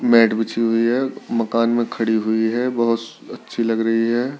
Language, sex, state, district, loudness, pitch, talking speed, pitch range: Hindi, male, Delhi, New Delhi, -19 LUFS, 115 Hz, 190 wpm, 115-120 Hz